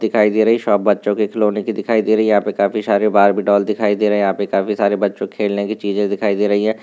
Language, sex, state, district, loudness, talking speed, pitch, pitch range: Hindi, male, Rajasthan, Nagaur, -16 LUFS, 315 wpm, 105 Hz, 100-105 Hz